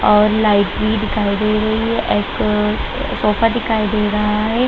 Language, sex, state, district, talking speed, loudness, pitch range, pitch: Hindi, female, Bihar, Madhepura, 165 wpm, -16 LUFS, 210-220 Hz, 215 Hz